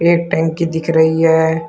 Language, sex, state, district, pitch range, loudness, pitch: Hindi, male, Uttar Pradesh, Shamli, 160-170 Hz, -14 LUFS, 165 Hz